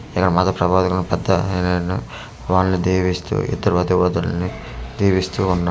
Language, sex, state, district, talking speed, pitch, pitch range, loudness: Telugu, male, Andhra Pradesh, Manyam, 75 wpm, 90 Hz, 90-95 Hz, -19 LUFS